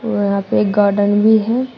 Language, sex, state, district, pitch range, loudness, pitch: Hindi, female, Uttar Pradesh, Shamli, 205-230 Hz, -15 LUFS, 210 Hz